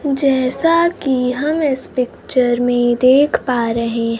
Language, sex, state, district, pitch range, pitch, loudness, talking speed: Hindi, female, Bihar, Kaimur, 245-280 Hz, 255 Hz, -16 LUFS, 130 wpm